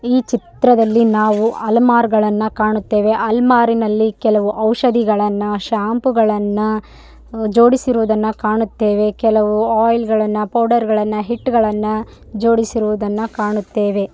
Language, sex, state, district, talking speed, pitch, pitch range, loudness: Kannada, female, Karnataka, Raichur, 85 wpm, 220 Hz, 210-230 Hz, -15 LUFS